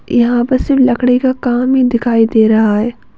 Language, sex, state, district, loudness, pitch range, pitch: Hindi, female, Chhattisgarh, Bastar, -12 LUFS, 230-255 Hz, 245 Hz